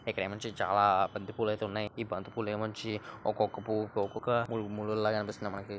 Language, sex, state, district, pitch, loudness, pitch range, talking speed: Telugu, male, Andhra Pradesh, Srikakulam, 105 Hz, -33 LUFS, 105-110 Hz, 155 wpm